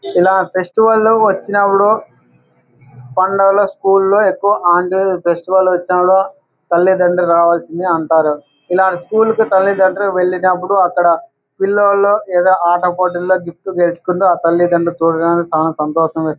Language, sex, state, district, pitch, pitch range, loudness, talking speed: Telugu, male, Andhra Pradesh, Anantapur, 180 Hz, 170-195 Hz, -13 LUFS, 125 wpm